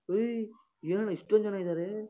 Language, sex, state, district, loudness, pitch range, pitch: Kannada, male, Karnataka, Shimoga, -31 LUFS, 185-215 Hz, 210 Hz